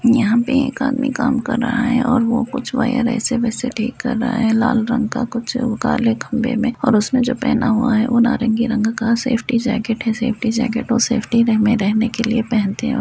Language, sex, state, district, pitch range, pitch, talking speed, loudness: Hindi, female, Uttar Pradesh, Deoria, 230-245 Hz, 235 Hz, 225 wpm, -18 LUFS